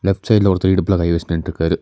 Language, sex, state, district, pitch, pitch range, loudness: Tamil, male, Tamil Nadu, Nilgiris, 95 Hz, 85-95 Hz, -17 LUFS